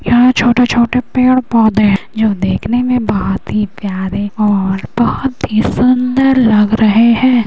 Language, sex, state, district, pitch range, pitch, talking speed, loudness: Hindi, female, Uttar Pradesh, Etah, 205-250 Hz, 230 Hz, 135 wpm, -12 LUFS